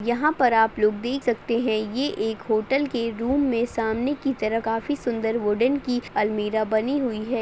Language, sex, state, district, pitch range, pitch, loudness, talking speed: Hindi, female, Uttar Pradesh, Ghazipur, 220-255 Hz, 235 Hz, -24 LUFS, 195 wpm